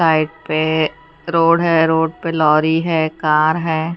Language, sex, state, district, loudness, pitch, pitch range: Hindi, female, Haryana, Charkhi Dadri, -16 LUFS, 160 Hz, 155-165 Hz